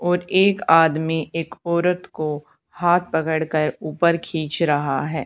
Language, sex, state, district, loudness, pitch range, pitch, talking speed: Hindi, female, Haryana, Charkhi Dadri, -20 LUFS, 155-175 Hz, 160 Hz, 150 wpm